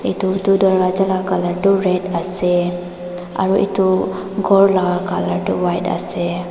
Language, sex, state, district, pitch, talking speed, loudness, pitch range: Nagamese, female, Nagaland, Dimapur, 185 Hz, 145 wpm, -17 LUFS, 180-190 Hz